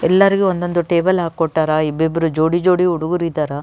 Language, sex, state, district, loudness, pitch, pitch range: Kannada, female, Karnataka, Raichur, -17 LUFS, 170 Hz, 160-180 Hz